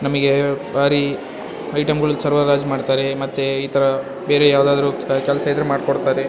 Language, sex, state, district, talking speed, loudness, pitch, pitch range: Kannada, female, Karnataka, Bellary, 135 wpm, -18 LUFS, 140 Hz, 135-145 Hz